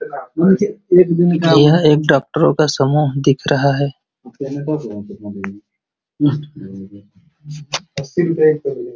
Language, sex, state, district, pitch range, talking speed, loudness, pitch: Hindi, male, Uttar Pradesh, Ghazipur, 140-165 Hz, 55 wpm, -15 LUFS, 150 Hz